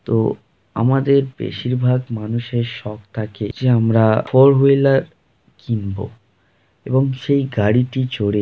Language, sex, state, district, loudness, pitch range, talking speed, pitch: Bengali, male, West Bengal, Jhargram, -18 LUFS, 110-135 Hz, 105 wpm, 120 Hz